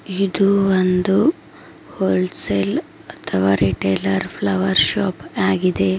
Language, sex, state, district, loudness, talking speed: Kannada, female, Karnataka, Bidar, -18 LUFS, 90 wpm